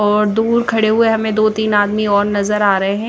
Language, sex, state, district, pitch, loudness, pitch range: Hindi, female, Chandigarh, Chandigarh, 210 Hz, -15 LUFS, 205-220 Hz